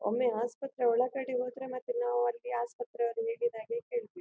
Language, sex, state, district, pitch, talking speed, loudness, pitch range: Kannada, female, Karnataka, Dakshina Kannada, 245 Hz, 140 wpm, -33 LUFS, 240-260 Hz